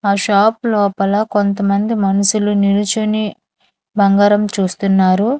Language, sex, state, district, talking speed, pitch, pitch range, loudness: Telugu, female, Andhra Pradesh, Manyam, 90 wpm, 205 Hz, 200-215 Hz, -15 LUFS